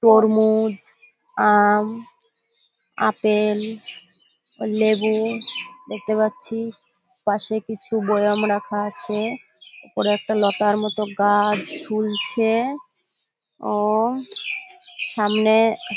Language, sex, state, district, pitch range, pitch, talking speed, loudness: Bengali, female, West Bengal, Kolkata, 210-240 Hz, 220 Hz, 75 wpm, -21 LUFS